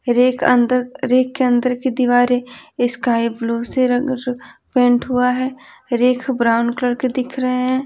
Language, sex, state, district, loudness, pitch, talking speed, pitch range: Hindi, female, Bihar, Patna, -17 LUFS, 250 Hz, 160 wpm, 245-255 Hz